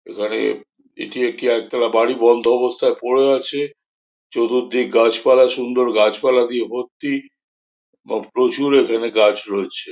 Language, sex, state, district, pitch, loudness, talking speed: Bengali, male, West Bengal, Jhargram, 125 Hz, -18 LUFS, 135 wpm